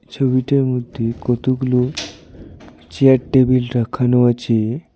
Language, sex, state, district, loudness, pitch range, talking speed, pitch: Bengali, male, West Bengal, Alipurduar, -17 LUFS, 120-130 Hz, 85 wpm, 125 Hz